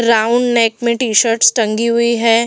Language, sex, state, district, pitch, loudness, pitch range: Hindi, female, Delhi, New Delhi, 235 Hz, -13 LUFS, 230-235 Hz